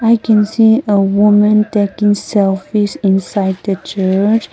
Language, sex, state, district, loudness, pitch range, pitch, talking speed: English, female, Nagaland, Kohima, -13 LUFS, 195-215 Hz, 205 Hz, 135 wpm